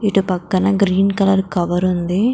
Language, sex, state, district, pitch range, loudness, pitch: Telugu, female, Telangana, Karimnagar, 180-195 Hz, -17 LUFS, 190 Hz